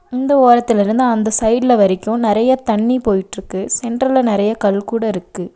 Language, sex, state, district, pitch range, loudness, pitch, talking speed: Tamil, female, Tamil Nadu, Nilgiris, 205-245 Hz, -15 LUFS, 225 Hz, 150 wpm